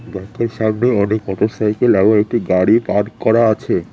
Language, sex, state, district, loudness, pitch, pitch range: Bengali, male, West Bengal, Cooch Behar, -15 LUFS, 110 Hz, 100-115 Hz